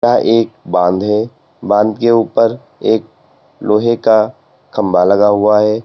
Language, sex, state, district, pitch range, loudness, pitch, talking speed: Hindi, male, Uttar Pradesh, Lalitpur, 105-115 Hz, -13 LUFS, 110 Hz, 135 wpm